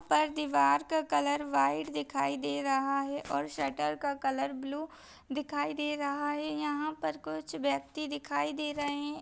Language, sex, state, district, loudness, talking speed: Hindi, female, Maharashtra, Aurangabad, -32 LUFS, 165 wpm